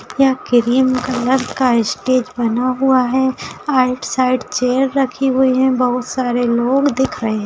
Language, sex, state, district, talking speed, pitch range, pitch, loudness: Hindi, female, Maharashtra, Pune, 160 wpm, 250-260 Hz, 255 Hz, -16 LUFS